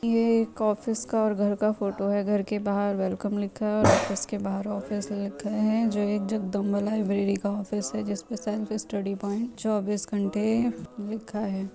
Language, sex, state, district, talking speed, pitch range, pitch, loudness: Hindi, female, Uttar Pradesh, Jyotiba Phule Nagar, 195 wpm, 200-215 Hz, 205 Hz, -27 LUFS